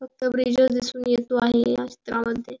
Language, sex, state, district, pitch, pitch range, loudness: Marathi, female, Maharashtra, Pune, 245 Hz, 235-255 Hz, -23 LUFS